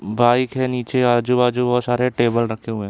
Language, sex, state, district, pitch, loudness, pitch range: Hindi, male, Chhattisgarh, Bilaspur, 120 Hz, -19 LUFS, 115-125 Hz